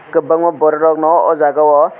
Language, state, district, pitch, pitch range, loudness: Kokborok, Tripura, West Tripura, 160 Hz, 155-165 Hz, -12 LUFS